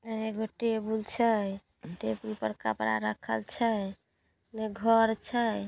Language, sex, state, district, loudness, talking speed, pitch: Maithili, female, Bihar, Samastipur, -31 LUFS, 125 wpm, 215 Hz